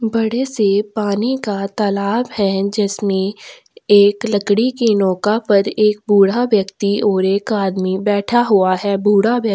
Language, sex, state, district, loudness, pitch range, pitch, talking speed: Hindi, female, Chhattisgarh, Sukma, -16 LUFS, 200-220 Hz, 205 Hz, 145 wpm